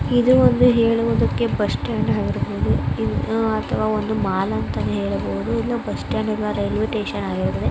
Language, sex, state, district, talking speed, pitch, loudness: Kannada, female, Karnataka, Mysore, 150 wpm, 195 Hz, -20 LUFS